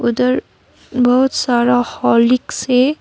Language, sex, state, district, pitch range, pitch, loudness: Hindi, female, West Bengal, Darjeeling, 245-255 Hz, 250 Hz, -15 LUFS